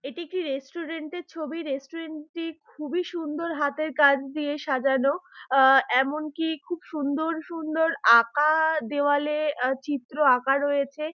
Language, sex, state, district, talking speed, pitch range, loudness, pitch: Bengali, female, West Bengal, Dakshin Dinajpur, 130 wpm, 275-325 Hz, -25 LUFS, 300 Hz